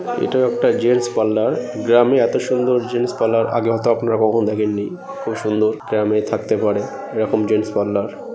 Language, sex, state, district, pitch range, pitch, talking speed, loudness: Bengali, male, West Bengal, North 24 Parganas, 110-120 Hz, 115 Hz, 165 wpm, -18 LUFS